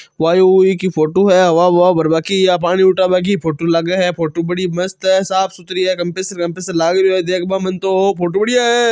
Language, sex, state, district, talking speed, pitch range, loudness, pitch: Marwari, male, Rajasthan, Churu, 220 wpm, 175-190 Hz, -14 LUFS, 185 Hz